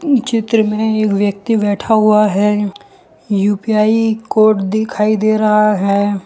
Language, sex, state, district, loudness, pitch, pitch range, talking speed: Hindi, male, Gujarat, Valsad, -14 LUFS, 215 Hz, 205-220 Hz, 125 wpm